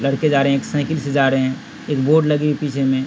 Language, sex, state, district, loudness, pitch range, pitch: Hindi, male, Bihar, Supaul, -18 LUFS, 135-150 Hz, 140 Hz